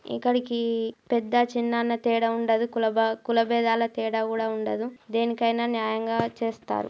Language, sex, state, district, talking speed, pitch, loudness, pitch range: Telugu, female, Telangana, Karimnagar, 130 wpm, 230 Hz, -26 LUFS, 225-235 Hz